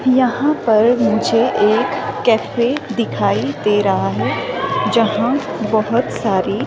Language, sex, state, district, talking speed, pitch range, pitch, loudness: Hindi, female, Himachal Pradesh, Shimla, 110 wpm, 215-250 Hz, 230 Hz, -16 LUFS